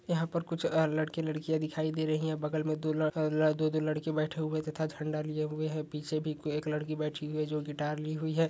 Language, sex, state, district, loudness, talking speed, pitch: Hindi, male, Bihar, Saran, -33 LUFS, 245 wpm, 155 Hz